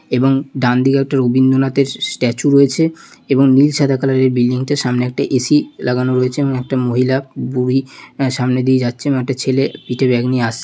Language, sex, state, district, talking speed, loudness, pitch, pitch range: Bengali, male, West Bengal, Malda, 195 wpm, -15 LUFS, 130 Hz, 125-135 Hz